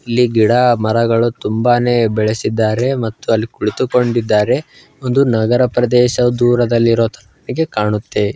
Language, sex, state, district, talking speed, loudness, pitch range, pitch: Kannada, male, Karnataka, Bijapur, 110 wpm, -15 LUFS, 110-125 Hz, 120 Hz